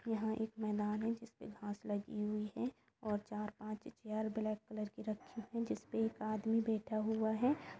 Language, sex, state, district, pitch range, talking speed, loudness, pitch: Hindi, female, Jharkhand, Jamtara, 210-225 Hz, 175 wpm, -41 LUFS, 220 Hz